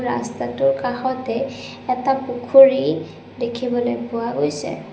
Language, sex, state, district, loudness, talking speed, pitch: Assamese, female, Assam, Sonitpur, -20 LUFS, 85 wpm, 245 Hz